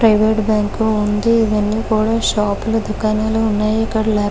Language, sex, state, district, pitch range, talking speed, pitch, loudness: Telugu, female, Andhra Pradesh, Guntur, 210-220 Hz, 155 wpm, 215 Hz, -16 LUFS